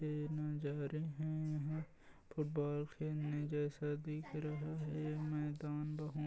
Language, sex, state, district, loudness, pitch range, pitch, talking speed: Hindi, male, Chhattisgarh, Bilaspur, -42 LUFS, 150-155 Hz, 150 Hz, 115 wpm